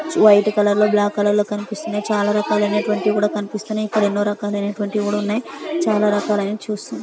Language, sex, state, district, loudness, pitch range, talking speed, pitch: Telugu, female, Andhra Pradesh, Anantapur, -19 LUFS, 205-210 Hz, 160 wpm, 210 Hz